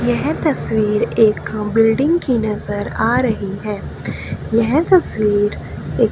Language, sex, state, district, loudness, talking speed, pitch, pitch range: Hindi, female, Haryana, Charkhi Dadri, -17 LUFS, 125 wpm, 220 Hz, 210-245 Hz